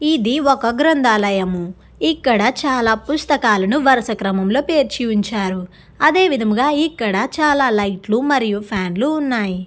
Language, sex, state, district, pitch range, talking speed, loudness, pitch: Telugu, female, Andhra Pradesh, Guntur, 205-290 Hz, 120 wpm, -17 LUFS, 235 Hz